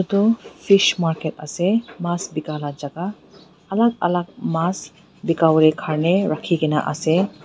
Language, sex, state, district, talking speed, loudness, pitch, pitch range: Nagamese, female, Nagaland, Dimapur, 120 wpm, -20 LUFS, 175 Hz, 155-195 Hz